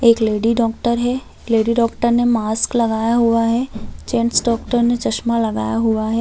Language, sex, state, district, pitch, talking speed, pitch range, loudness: Hindi, female, Chhattisgarh, Balrampur, 230 Hz, 175 wpm, 225-235 Hz, -17 LUFS